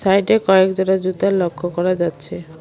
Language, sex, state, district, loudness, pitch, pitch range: Bengali, female, West Bengal, Alipurduar, -17 LUFS, 185 Hz, 175-190 Hz